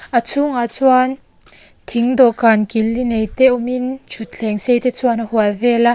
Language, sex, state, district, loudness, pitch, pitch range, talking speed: Mizo, female, Mizoram, Aizawl, -16 LUFS, 240 Hz, 225-255 Hz, 180 wpm